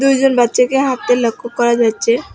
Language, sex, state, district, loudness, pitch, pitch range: Bengali, female, West Bengal, Alipurduar, -14 LUFS, 245 Hz, 235-265 Hz